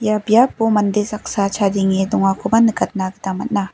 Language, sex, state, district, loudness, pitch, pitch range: Garo, female, Meghalaya, West Garo Hills, -17 LUFS, 205 Hz, 195-215 Hz